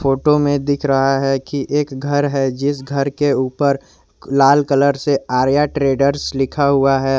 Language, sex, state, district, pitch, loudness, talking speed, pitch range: Hindi, male, Jharkhand, Garhwa, 140 Hz, -16 LUFS, 175 wpm, 135-145 Hz